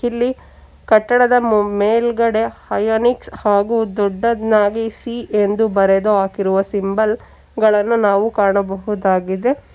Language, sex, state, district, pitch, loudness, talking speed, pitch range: Kannada, female, Karnataka, Bangalore, 215 Hz, -16 LUFS, 90 wpm, 200-230 Hz